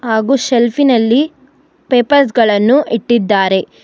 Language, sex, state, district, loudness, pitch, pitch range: Kannada, female, Karnataka, Bangalore, -12 LUFS, 245 Hz, 225-275 Hz